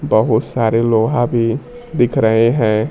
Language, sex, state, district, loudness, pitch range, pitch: Hindi, male, Bihar, Kaimur, -15 LUFS, 110-135 Hz, 115 Hz